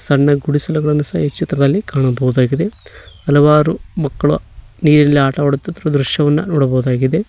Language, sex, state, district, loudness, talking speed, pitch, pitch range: Kannada, male, Karnataka, Koppal, -15 LUFS, 100 wpm, 145 Hz, 140-155 Hz